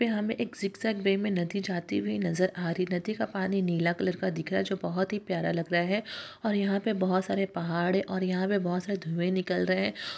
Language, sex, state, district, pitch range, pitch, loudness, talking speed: Hindi, female, Uttarakhand, Tehri Garhwal, 180-200 Hz, 190 Hz, -29 LUFS, 265 wpm